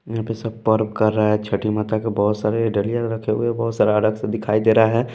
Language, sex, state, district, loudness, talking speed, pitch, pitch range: Hindi, male, Bihar, West Champaran, -20 LUFS, 270 wpm, 110 Hz, 105-115 Hz